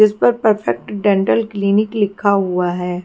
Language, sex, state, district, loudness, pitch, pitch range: Hindi, female, Haryana, Jhajjar, -16 LUFS, 200 Hz, 180-210 Hz